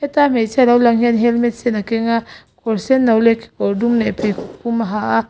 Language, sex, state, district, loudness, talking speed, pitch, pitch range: Mizo, female, Mizoram, Aizawl, -16 LUFS, 235 wpm, 230 Hz, 220-240 Hz